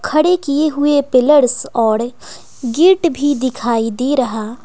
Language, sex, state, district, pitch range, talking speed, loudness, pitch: Hindi, female, Bihar, West Champaran, 240-295 Hz, 130 wpm, -14 LUFS, 270 Hz